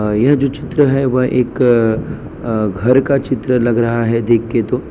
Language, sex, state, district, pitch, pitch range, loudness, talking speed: Hindi, male, Gujarat, Valsad, 125 Hz, 115-135 Hz, -15 LUFS, 195 wpm